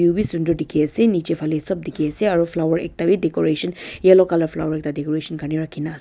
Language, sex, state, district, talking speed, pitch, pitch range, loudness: Nagamese, female, Nagaland, Dimapur, 210 wpm, 165 Hz, 155-175 Hz, -20 LUFS